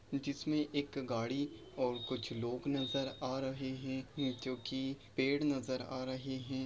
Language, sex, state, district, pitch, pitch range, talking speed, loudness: Hindi, male, Bihar, Jamui, 130 Hz, 130-140 Hz, 155 wpm, -39 LUFS